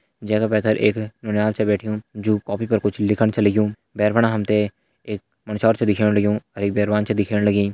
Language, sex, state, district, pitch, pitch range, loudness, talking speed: Hindi, male, Uttarakhand, Tehri Garhwal, 105 Hz, 105-110 Hz, -20 LUFS, 225 wpm